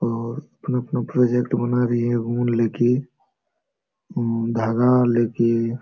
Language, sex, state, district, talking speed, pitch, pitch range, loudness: Hindi, male, Jharkhand, Sahebganj, 125 wpm, 120 Hz, 115-125 Hz, -21 LUFS